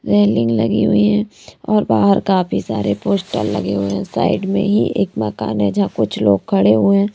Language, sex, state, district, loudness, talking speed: Hindi, female, Haryana, Rohtak, -16 LUFS, 200 wpm